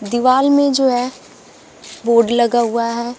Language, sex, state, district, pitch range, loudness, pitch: Hindi, female, Uttar Pradesh, Shamli, 235-260 Hz, -15 LUFS, 240 Hz